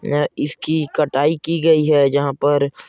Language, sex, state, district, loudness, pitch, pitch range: Hindi, male, Chhattisgarh, Korba, -18 LUFS, 145 Hz, 140-160 Hz